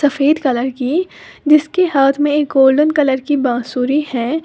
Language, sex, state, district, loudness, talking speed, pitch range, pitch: Hindi, female, Uttar Pradesh, Lalitpur, -15 LUFS, 160 wpm, 265-300 Hz, 285 Hz